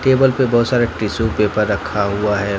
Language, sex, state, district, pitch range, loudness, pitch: Hindi, male, Jharkhand, Ranchi, 105-120 Hz, -17 LUFS, 105 Hz